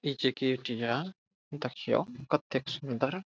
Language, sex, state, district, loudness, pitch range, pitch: Maithili, male, Bihar, Saharsa, -32 LUFS, 125-150 Hz, 135 Hz